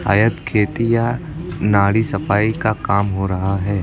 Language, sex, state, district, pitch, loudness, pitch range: Hindi, male, Uttar Pradesh, Lucknow, 100 Hz, -18 LUFS, 100-110 Hz